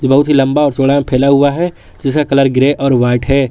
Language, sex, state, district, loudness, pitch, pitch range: Hindi, male, Jharkhand, Garhwa, -12 LUFS, 140 Hz, 135-140 Hz